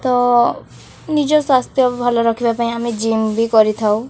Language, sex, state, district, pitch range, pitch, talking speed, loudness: Odia, female, Odisha, Khordha, 225-250 Hz, 235 Hz, 145 wpm, -16 LUFS